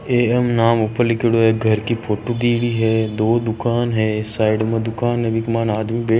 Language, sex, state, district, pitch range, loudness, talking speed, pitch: Marwari, male, Rajasthan, Churu, 110-120 Hz, -18 LUFS, 220 wpm, 115 Hz